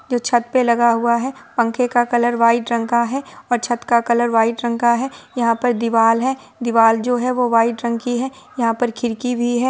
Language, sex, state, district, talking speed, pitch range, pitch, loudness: Hindi, female, Bihar, Supaul, 230 wpm, 235-250 Hz, 240 Hz, -18 LUFS